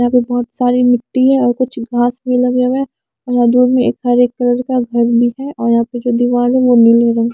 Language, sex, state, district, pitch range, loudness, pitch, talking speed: Hindi, female, Maharashtra, Mumbai Suburban, 240-250 Hz, -13 LUFS, 245 Hz, 280 wpm